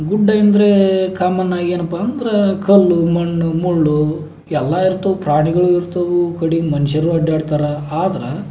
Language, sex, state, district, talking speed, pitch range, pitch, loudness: Kannada, male, Karnataka, Belgaum, 120 wpm, 160-190 Hz, 175 Hz, -15 LUFS